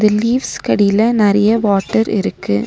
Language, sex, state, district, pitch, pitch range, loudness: Tamil, female, Tamil Nadu, Nilgiris, 210 Hz, 200-225 Hz, -14 LUFS